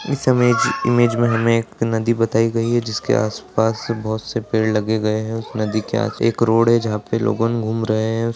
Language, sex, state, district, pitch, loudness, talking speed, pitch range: Hindi, male, Bihar, Purnia, 115 Hz, -19 LUFS, 215 wpm, 110-115 Hz